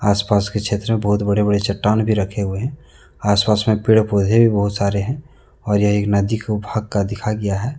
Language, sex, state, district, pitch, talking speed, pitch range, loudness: Hindi, male, Jharkhand, Deoghar, 105 Hz, 230 wpm, 100-110 Hz, -18 LUFS